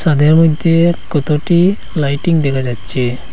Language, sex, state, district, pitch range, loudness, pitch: Bengali, male, Assam, Hailakandi, 140-170 Hz, -14 LUFS, 155 Hz